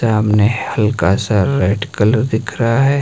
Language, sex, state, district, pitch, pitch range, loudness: Hindi, male, Himachal Pradesh, Shimla, 110 Hz, 105-130 Hz, -15 LUFS